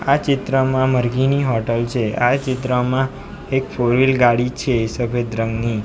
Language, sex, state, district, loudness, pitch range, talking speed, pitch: Gujarati, male, Gujarat, Valsad, -18 LUFS, 120-130 Hz, 135 wpm, 125 Hz